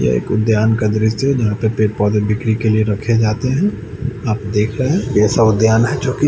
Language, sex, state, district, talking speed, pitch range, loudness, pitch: Hindi, male, Chandigarh, Chandigarh, 240 wpm, 105-120 Hz, -16 LUFS, 110 Hz